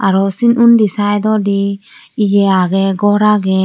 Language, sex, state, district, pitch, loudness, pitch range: Chakma, female, Tripura, Dhalai, 200 Hz, -12 LUFS, 195-210 Hz